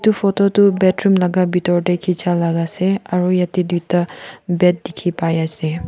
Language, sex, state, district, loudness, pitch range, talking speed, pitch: Nagamese, female, Nagaland, Kohima, -17 LUFS, 175-190 Hz, 165 wpm, 180 Hz